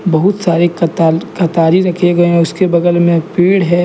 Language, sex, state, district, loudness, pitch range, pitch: Hindi, male, Jharkhand, Deoghar, -12 LUFS, 170-180 Hz, 175 Hz